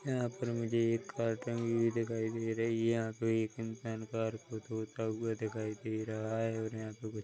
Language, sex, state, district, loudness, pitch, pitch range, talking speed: Hindi, male, Chhattisgarh, Korba, -36 LUFS, 115 Hz, 110-115 Hz, 225 wpm